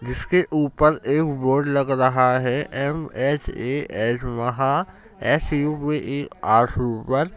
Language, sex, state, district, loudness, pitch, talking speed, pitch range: Hindi, male, Uttar Pradesh, Jyotiba Phule Nagar, -22 LUFS, 140 Hz, 120 wpm, 125-150 Hz